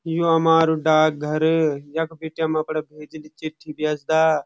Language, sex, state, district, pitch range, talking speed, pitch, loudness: Garhwali, male, Uttarakhand, Uttarkashi, 155-160 Hz, 160 wpm, 155 Hz, -21 LUFS